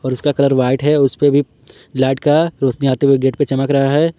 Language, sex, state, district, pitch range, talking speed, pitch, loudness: Hindi, male, Jharkhand, Palamu, 135-145 Hz, 255 wpm, 135 Hz, -15 LUFS